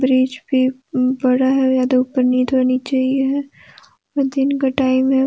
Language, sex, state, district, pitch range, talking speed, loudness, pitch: Hindi, female, Jharkhand, Deoghar, 255-270 Hz, 115 wpm, -17 LUFS, 260 Hz